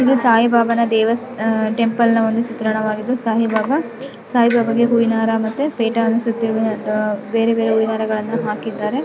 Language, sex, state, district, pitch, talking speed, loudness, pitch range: Kannada, female, Karnataka, Mysore, 230 Hz, 140 wpm, -17 LUFS, 220-235 Hz